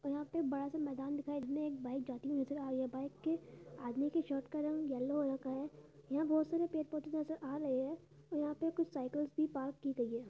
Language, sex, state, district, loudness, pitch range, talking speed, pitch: Hindi, female, Uttar Pradesh, Budaun, -40 LUFS, 270-305 Hz, 285 wpm, 285 Hz